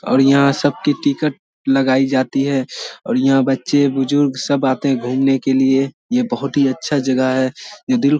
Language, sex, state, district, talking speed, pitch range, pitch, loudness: Hindi, male, Bihar, Samastipur, 190 wpm, 135-145 Hz, 135 Hz, -17 LUFS